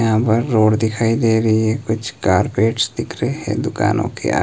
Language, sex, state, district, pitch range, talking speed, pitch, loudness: Hindi, male, Himachal Pradesh, Shimla, 110-115 Hz, 190 wpm, 110 Hz, -17 LUFS